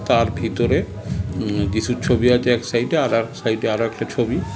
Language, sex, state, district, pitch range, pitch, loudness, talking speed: Bengali, male, West Bengal, North 24 Parganas, 100-120 Hz, 110 Hz, -20 LUFS, 185 wpm